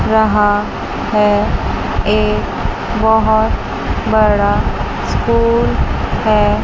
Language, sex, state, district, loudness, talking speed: Hindi, female, Chandigarh, Chandigarh, -15 LUFS, 65 wpm